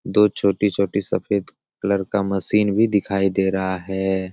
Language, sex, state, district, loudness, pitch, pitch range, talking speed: Hindi, male, Bihar, Jamui, -20 LUFS, 100 Hz, 95-100 Hz, 150 wpm